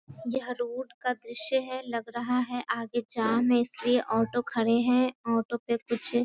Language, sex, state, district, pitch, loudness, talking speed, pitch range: Hindi, female, Bihar, Sitamarhi, 240 Hz, -28 LUFS, 180 wpm, 230-250 Hz